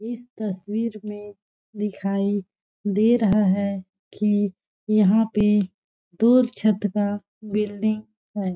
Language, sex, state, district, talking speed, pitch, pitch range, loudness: Hindi, female, Chhattisgarh, Balrampur, 105 wpm, 210 Hz, 200-215 Hz, -23 LUFS